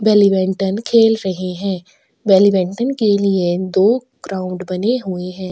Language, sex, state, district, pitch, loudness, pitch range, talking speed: Hindi, female, Chhattisgarh, Sukma, 195 Hz, -16 LUFS, 185-215 Hz, 140 wpm